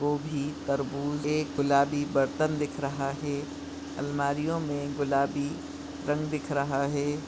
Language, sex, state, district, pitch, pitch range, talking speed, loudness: Hindi, female, Goa, North and South Goa, 145 Hz, 140-145 Hz, 125 wpm, -30 LUFS